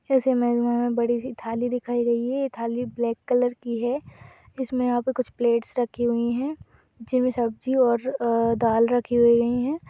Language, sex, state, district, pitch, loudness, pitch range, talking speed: Hindi, female, Uttar Pradesh, Budaun, 240 Hz, -24 LUFS, 235-255 Hz, 195 wpm